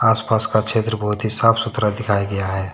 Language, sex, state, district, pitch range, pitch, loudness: Hindi, male, Jharkhand, Deoghar, 105-110 Hz, 110 Hz, -19 LUFS